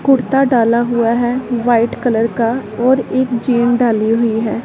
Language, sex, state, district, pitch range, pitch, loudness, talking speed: Hindi, female, Punjab, Pathankot, 230-250 Hz, 240 Hz, -14 LUFS, 170 wpm